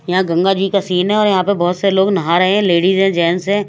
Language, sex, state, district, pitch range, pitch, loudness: Hindi, female, Odisha, Malkangiri, 180-200 Hz, 190 Hz, -14 LUFS